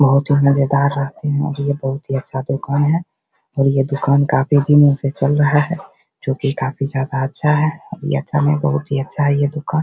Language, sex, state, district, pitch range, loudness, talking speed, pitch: Hindi, male, Bihar, Begusarai, 135-150 Hz, -17 LUFS, 205 wpm, 140 Hz